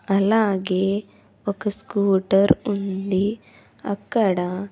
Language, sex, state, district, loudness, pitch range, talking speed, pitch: Telugu, female, Andhra Pradesh, Sri Satya Sai, -22 LUFS, 190-205 Hz, 65 wpm, 200 Hz